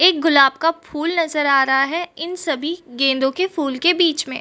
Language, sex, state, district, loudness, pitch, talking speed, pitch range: Hindi, female, Bihar, Sitamarhi, -18 LUFS, 315 Hz, 220 wpm, 275-340 Hz